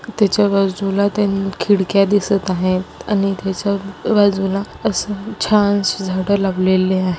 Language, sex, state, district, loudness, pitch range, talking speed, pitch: Marathi, female, Maharashtra, Aurangabad, -17 LUFS, 190-205 Hz, 125 wpm, 195 Hz